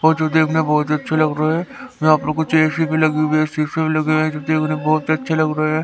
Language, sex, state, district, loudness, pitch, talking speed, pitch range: Hindi, male, Haryana, Rohtak, -18 LUFS, 155 Hz, 320 wpm, 155-160 Hz